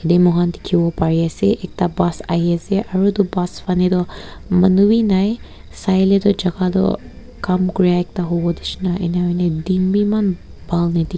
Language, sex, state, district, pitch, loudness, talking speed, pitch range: Nagamese, female, Nagaland, Kohima, 180 Hz, -17 LUFS, 175 wpm, 175-195 Hz